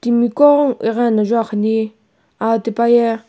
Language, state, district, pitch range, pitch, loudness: Sumi, Nagaland, Kohima, 220-240 Hz, 230 Hz, -15 LUFS